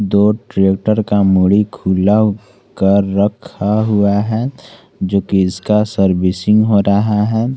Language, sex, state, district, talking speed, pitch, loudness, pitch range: Hindi, male, Jharkhand, Garhwa, 125 wpm, 100 Hz, -14 LUFS, 95-105 Hz